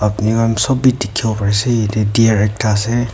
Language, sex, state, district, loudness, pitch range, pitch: Nagamese, female, Nagaland, Kohima, -15 LUFS, 105-115 Hz, 110 Hz